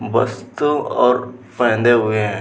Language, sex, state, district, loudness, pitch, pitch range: Hindi, male, Bihar, Vaishali, -17 LUFS, 120 Hz, 110-125 Hz